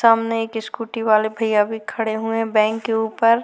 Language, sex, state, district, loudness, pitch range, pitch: Hindi, female, Maharashtra, Chandrapur, -20 LUFS, 220-225 Hz, 225 Hz